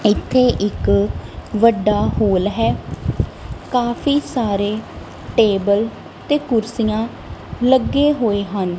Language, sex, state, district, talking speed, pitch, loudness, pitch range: Punjabi, female, Punjab, Kapurthala, 90 wpm, 215 Hz, -18 LUFS, 200-240 Hz